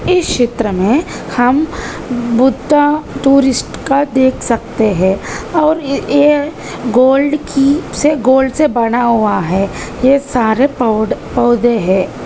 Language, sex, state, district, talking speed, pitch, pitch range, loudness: Hindi, female, Uttar Pradesh, Ghazipur, 120 wpm, 260 Hz, 230-285 Hz, -13 LUFS